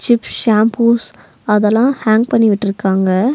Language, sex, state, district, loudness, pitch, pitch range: Tamil, female, Tamil Nadu, Nilgiris, -14 LUFS, 220 Hz, 210-235 Hz